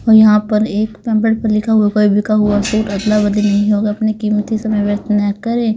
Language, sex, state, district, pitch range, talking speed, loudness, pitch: Hindi, female, Haryana, Rohtak, 210-220 Hz, 220 wpm, -14 LUFS, 210 Hz